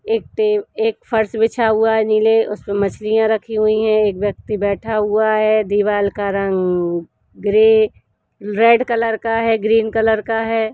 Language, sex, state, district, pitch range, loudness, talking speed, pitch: Hindi, female, Uttarakhand, Uttarkashi, 210-225 Hz, -17 LUFS, 170 wpm, 220 Hz